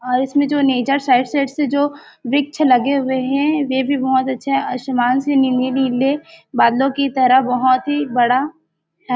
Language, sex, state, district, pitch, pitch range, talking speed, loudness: Hindi, female, Chhattisgarh, Bilaspur, 265 Hz, 255-285 Hz, 170 wpm, -17 LUFS